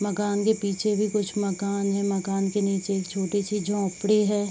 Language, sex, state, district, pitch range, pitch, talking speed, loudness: Hindi, female, Bihar, Saharsa, 195-205 Hz, 200 Hz, 185 wpm, -25 LUFS